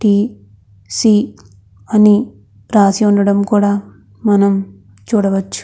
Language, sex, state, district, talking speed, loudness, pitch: Telugu, female, Andhra Pradesh, Krishna, 75 wpm, -14 LUFS, 200 Hz